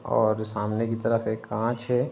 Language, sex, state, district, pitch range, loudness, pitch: Hindi, male, Uttar Pradesh, Ghazipur, 110-115 Hz, -27 LUFS, 115 Hz